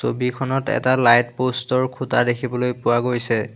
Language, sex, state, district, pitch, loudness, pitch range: Assamese, male, Assam, Hailakandi, 125 Hz, -20 LUFS, 120-130 Hz